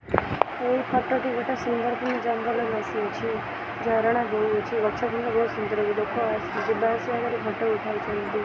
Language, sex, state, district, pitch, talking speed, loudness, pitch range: Odia, female, Odisha, Khordha, 235 Hz, 140 wpm, -26 LUFS, 220-240 Hz